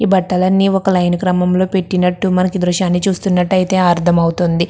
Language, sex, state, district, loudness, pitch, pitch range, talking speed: Telugu, female, Andhra Pradesh, Krishna, -14 LUFS, 180 Hz, 180-190 Hz, 180 wpm